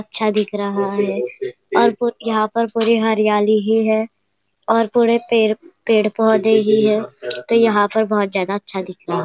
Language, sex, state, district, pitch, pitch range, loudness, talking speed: Hindi, female, Maharashtra, Nagpur, 215 Hz, 205-225 Hz, -17 LUFS, 180 wpm